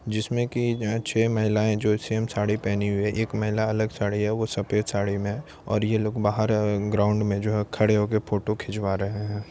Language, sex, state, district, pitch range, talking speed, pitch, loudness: Hindi, male, Bihar, Supaul, 105-110 Hz, 225 wpm, 105 Hz, -25 LUFS